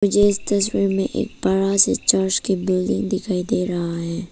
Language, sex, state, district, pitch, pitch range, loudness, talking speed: Hindi, female, Arunachal Pradesh, Papum Pare, 190 Hz, 185-200 Hz, -20 LUFS, 195 wpm